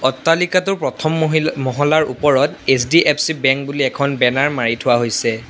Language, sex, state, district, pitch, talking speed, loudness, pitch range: Assamese, male, Assam, Sonitpur, 140 Hz, 140 wpm, -16 LUFS, 130-155 Hz